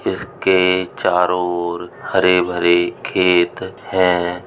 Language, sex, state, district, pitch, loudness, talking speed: Hindi, male, Uttar Pradesh, Hamirpur, 90 Hz, -17 LUFS, 95 wpm